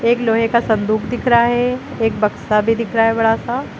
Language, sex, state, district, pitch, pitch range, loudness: Hindi, female, Uttar Pradesh, Lucknow, 225 Hz, 225-235 Hz, -16 LUFS